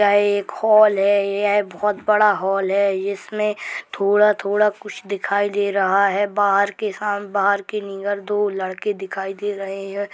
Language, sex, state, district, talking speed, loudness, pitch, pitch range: Hindi, female, Uttar Pradesh, Hamirpur, 155 wpm, -20 LUFS, 200 Hz, 195-205 Hz